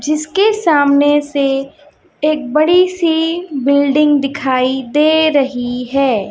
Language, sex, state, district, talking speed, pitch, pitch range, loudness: Hindi, female, Chhattisgarh, Raipur, 105 wpm, 290 Hz, 275-310 Hz, -14 LUFS